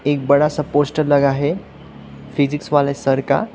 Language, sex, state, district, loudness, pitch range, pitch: Hindi, male, Sikkim, Gangtok, -17 LUFS, 135-150 Hz, 140 Hz